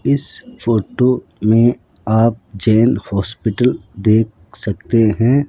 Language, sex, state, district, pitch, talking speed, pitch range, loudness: Hindi, male, Rajasthan, Jaipur, 110 Hz, 100 wpm, 105-120 Hz, -16 LUFS